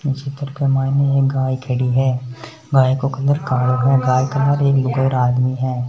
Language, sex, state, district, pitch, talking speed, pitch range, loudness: Hindi, male, Rajasthan, Nagaur, 135 Hz, 185 wpm, 130-140 Hz, -17 LUFS